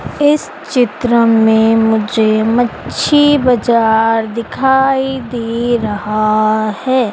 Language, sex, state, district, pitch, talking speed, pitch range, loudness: Hindi, female, Madhya Pradesh, Dhar, 230 Hz, 85 wpm, 220-255 Hz, -13 LUFS